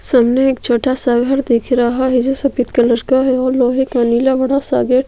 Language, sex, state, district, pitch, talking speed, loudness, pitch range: Hindi, female, Chhattisgarh, Sukma, 255 Hz, 245 wpm, -14 LUFS, 240-265 Hz